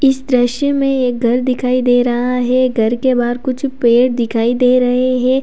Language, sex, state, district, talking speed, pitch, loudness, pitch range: Hindi, female, Uttar Pradesh, Lalitpur, 200 wpm, 250 Hz, -14 LUFS, 245-255 Hz